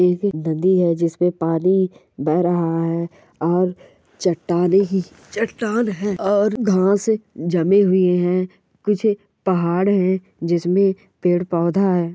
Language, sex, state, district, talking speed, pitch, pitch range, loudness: Hindi, female, Andhra Pradesh, Anantapur, 130 wpm, 185 Hz, 175-200 Hz, -19 LUFS